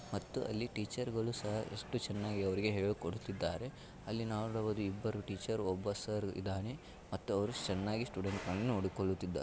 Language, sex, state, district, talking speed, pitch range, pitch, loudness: Kannada, male, Karnataka, Shimoga, 125 wpm, 95-110 Hz, 105 Hz, -39 LUFS